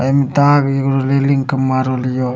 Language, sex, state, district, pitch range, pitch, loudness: Maithili, male, Bihar, Supaul, 130-140 Hz, 135 Hz, -15 LUFS